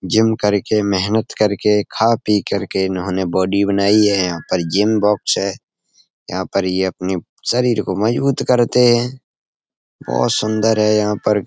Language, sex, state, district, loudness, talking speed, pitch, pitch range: Hindi, male, Uttar Pradesh, Etah, -17 LUFS, 155 wpm, 105 Hz, 95-110 Hz